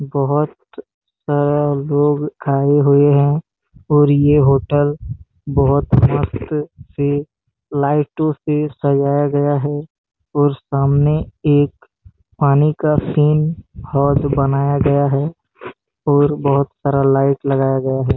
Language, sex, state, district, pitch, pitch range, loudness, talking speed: Hindi, male, Chhattisgarh, Bastar, 145 Hz, 140-145 Hz, -16 LUFS, 110 wpm